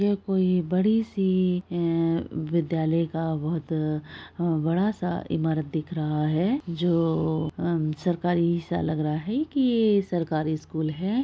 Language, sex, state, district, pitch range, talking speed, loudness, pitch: Hindi, female, Bihar, Araria, 160-185 Hz, 145 wpm, -26 LUFS, 170 Hz